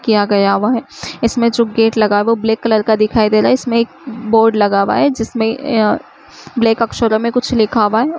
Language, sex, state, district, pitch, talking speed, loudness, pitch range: Hindi, female, Uttar Pradesh, Muzaffarnagar, 225 Hz, 235 wpm, -14 LUFS, 215-235 Hz